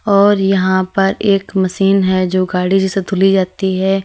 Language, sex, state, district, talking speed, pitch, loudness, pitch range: Hindi, female, Uttar Pradesh, Lalitpur, 180 wpm, 195 Hz, -14 LUFS, 185-195 Hz